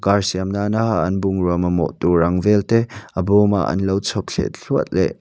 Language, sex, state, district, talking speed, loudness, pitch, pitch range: Mizo, male, Mizoram, Aizawl, 205 wpm, -19 LUFS, 95 Hz, 90-105 Hz